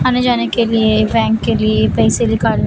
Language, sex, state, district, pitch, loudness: Hindi, female, Maharashtra, Mumbai Suburban, 220 Hz, -14 LUFS